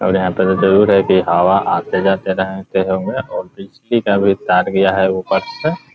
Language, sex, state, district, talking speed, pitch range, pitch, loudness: Hindi, male, Bihar, Muzaffarpur, 210 wpm, 95-100 Hz, 95 Hz, -15 LUFS